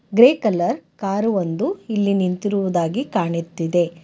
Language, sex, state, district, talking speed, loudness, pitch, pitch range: Kannada, female, Karnataka, Bangalore, 105 wpm, -20 LUFS, 195 Hz, 175-220 Hz